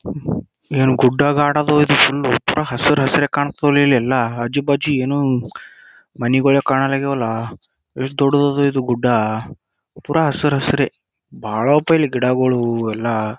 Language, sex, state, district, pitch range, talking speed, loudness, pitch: Kannada, male, Karnataka, Gulbarga, 125-145 Hz, 110 wpm, -17 LUFS, 135 Hz